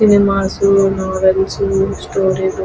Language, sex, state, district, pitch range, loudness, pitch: Telugu, female, Andhra Pradesh, Krishna, 190-195 Hz, -15 LUFS, 195 Hz